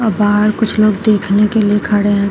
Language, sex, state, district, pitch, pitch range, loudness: Hindi, female, Uttar Pradesh, Shamli, 210 Hz, 205-215 Hz, -13 LUFS